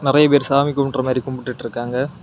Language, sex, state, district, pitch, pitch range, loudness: Tamil, male, Tamil Nadu, Kanyakumari, 135 Hz, 130-140 Hz, -19 LUFS